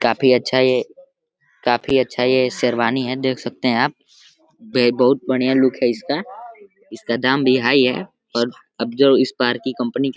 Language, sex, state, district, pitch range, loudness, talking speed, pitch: Hindi, male, Uttar Pradesh, Deoria, 125-135 Hz, -18 LUFS, 190 wpm, 130 Hz